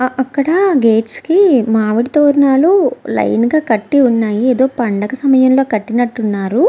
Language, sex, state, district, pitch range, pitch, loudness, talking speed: Telugu, female, Andhra Pradesh, Visakhapatnam, 225-285 Hz, 255 Hz, -13 LUFS, 125 wpm